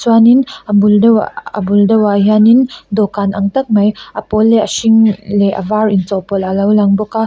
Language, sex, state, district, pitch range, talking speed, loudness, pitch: Mizo, female, Mizoram, Aizawl, 200-220 Hz, 215 wpm, -12 LUFS, 210 Hz